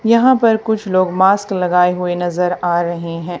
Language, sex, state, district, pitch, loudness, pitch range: Hindi, female, Haryana, Charkhi Dadri, 180 Hz, -15 LUFS, 175-205 Hz